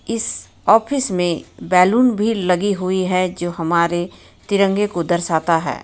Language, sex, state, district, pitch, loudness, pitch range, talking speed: Hindi, female, Jharkhand, Ranchi, 185 Hz, -18 LUFS, 175-205 Hz, 145 wpm